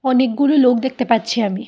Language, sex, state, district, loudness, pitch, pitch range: Bengali, female, Tripura, Dhalai, -16 LUFS, 250 Hz, 230-260 Hz